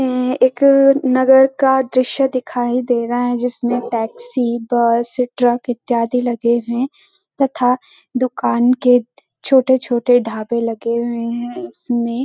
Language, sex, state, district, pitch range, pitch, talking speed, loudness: Hindi, female, Uttarakhand, Uttarkashi, 240-265 Hz, 245 Hz, 125 wpm, -16 LUFS